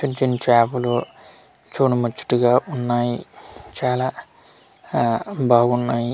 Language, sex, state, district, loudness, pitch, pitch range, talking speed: Telugu, male, Andhra Pradesh, Manyam, -20 LUFS, 120 Hz, 120-125 Hz, 80 wpm